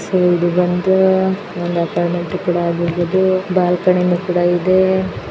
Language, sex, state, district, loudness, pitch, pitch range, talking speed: Kannada, female, Karnataka, Dakshina Kannada, -16 LUFS, 180 Hz, 175-185 Hz, 115 wpm